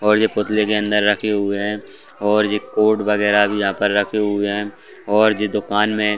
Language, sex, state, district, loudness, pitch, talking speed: Hindi, male, Chhattisgarh, Bastar, -18 LUFS, 105 Hz, 235 wpm